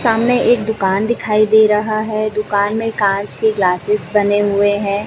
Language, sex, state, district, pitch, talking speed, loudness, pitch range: Hindi, female, Chhattisgarh, Raipur, 210 Hz, 180 wpm, -15 LUFS, 205-220 Hz